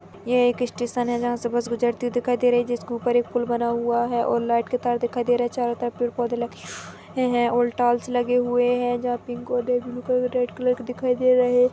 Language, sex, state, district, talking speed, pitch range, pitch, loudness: Hindi, female, Chhattisgarh, Rajnandgaon, 270 wpm, 240-245 Hz, 245 Hz, -23 LUFS